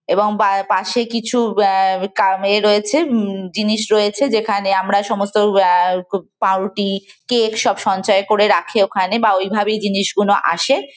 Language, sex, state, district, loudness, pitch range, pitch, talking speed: Bengali, female, West Bengal, Kolkata, -16 LUFS, 195-215 Hz, 205 Hz, 140 wpm